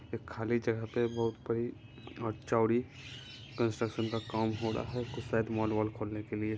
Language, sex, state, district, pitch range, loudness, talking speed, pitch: Hindi, male, Bihar, Muzaffarpur, 110-120 Hz, -34 LUFS, 190 wpm, 115 Hz